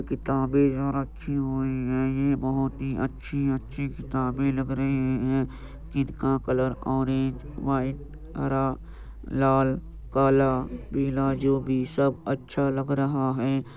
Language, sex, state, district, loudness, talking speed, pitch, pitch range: Hindi, male, Uttar Pradesh, Jyotiba Phule Nagar, -26 LUFS, 120 wpm, 135 Hz, 130-140 Hz